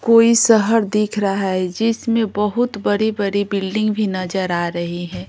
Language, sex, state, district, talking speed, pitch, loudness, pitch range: Hindi, female, Bihar, Patna, 160 wpm, 205 Hz, -18 LUFS, 190-225 Hz